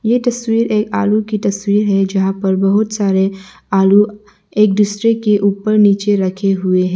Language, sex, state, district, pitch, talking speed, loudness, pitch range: Hindi, male, Arunachal Pradesh, Lower Dibang Valley, 205 Hz, 170 wpm, -14 LUFS, 195-215 Hz